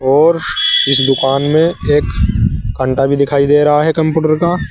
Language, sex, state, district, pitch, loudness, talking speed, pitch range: Hindi, male, Uttar Pradesh, Saharanpur, 145 Hz, -12 LUFS, 165 wpm, 135-160 Hz